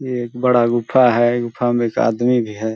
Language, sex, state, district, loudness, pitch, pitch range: Hindi, male, Chhattisgarh, Balrampur, -17 LUFS, 120 Hz, 115-125 Hz